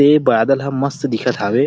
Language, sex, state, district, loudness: Chhattisgarhi, male, Chhattisgarh, Rajnandgaon, -16 LUFS